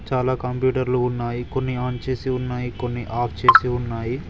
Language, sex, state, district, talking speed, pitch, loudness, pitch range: Telugu, male, Telangana, Mahabubabad, 155 wpm, 125 Hz, -22 LUFS, 120-130 Hz